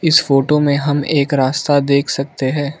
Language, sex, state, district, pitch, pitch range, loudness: Hindi, male, Arunachal Pradesh, Lower Dibang Valley, 140 Hz, 140-145 Hz, -15 LUFS